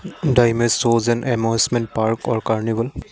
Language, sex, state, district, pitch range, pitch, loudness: English, male, Assam, Kamrup Metropolitan, 115-120 Hz, 115 Hz, -19 LUFS